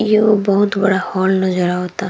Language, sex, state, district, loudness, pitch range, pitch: Bhojpuri, female, Bihar, East Champaran, -15 LUFS, 185-205 Hz, 195 Hz